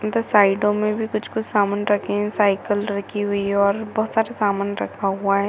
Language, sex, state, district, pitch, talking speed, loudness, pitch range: Hindi, female, Chhattisgarh, Bilaspur, 205 Hz, 220 wpm, -21 LUFS, 200-215 Hz